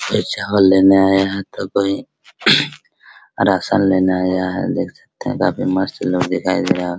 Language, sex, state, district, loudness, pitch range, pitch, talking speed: Hindi, male, Bihar, Araria, -16 LUFS, 90-95 Hz, 95 Hz, 180 wpm